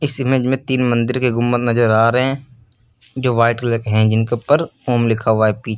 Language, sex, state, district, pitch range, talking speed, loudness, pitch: Hindi, male, Uttar Pradesh, Lucknow, 115-130 Hz, 240 wpm, -16 LUFS, 120 Hz